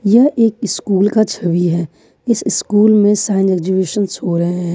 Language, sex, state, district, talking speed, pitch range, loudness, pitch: Hindi, female, Jharkhand, Ranchi, 175 wpm, 180-215 Hz, -14 LUFS, 200 Hz